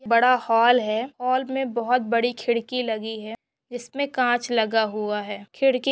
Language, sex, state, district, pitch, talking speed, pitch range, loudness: Hindi, female, Maharashtra, Pune, 240 Hz, 160 wpm, 225-250 Hz, -23 LUFS